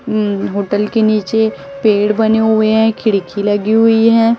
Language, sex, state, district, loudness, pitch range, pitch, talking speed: Hindi, female, Chhattisgarh, Raipur, -13 LUFS, 205-225 Hz, 220 Hz, 165 wpm